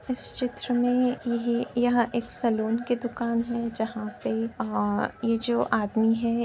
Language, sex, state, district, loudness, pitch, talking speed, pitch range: Hindi, female, Uttar Pradesh, Etah, -26 LUFS, 235 Hz, 160 wpm, 220-240 Hz